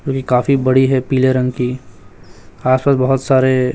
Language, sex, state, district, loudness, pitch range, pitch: Hindi, male, Chhattisgarh, Raipur, -15 LUFS, 125-130 Hz, 130 Hz